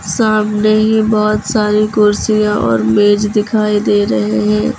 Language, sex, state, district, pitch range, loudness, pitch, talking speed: Hindi, female, Uttar Pradesh, Lucknow, 205-215 Hz, -13 LUFS, 210 Hz, 140 wpm